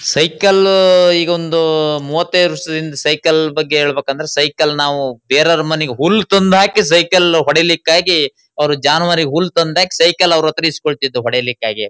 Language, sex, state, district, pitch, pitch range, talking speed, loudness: Kannada, male, Karnataka, Shimoga, 160 Hz, 150-175 Hz, 130 wpm, -13 LUFS